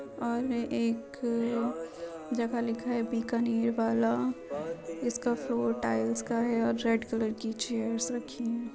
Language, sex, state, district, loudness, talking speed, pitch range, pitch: Hindi, female, Uttar Pradesh, Jyotiba Phule Nagar, -31 LUFS, 130 wpm, 220-235 Hz, 230 Hz